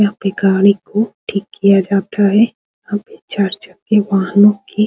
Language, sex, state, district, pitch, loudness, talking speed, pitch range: Hindi, female, Bihar, Supaul, 200 Hz, -15 LUFS, 170 wpm, 195-205 Hz